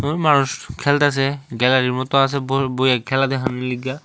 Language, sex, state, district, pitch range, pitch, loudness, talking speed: Bengali, male, Tripura, West Tripura, 130-140 Hz, 135 Hz, -19 LUFS, 160 wpm